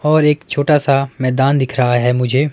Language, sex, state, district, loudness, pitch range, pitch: Hindi, male, Himachal Pradesh, Shimla, -15 LUFS, 130-150 Hz, 135 Hz